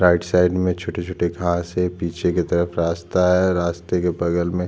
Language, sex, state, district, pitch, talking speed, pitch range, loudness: Hindi, male, Chhattisgarh, Jashpur, 90 Hz, 190 wpm, 85-90 Hz, -21 LUFS